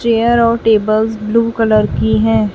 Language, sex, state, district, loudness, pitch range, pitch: Hindi, female, Chhattisgarh, Raipur, -13 LUFS, 165-230 Hz, 220 Hz